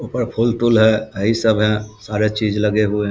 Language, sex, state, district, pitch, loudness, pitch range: Hindi, male, Bihar, Samastipur, 110 Hz, -17 LUFS, 105-115 Hz